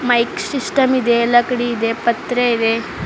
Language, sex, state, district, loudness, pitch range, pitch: Kannada, female, Karnataka, Bidar, -16 LUFS, 235-250 Hz, 240 Hz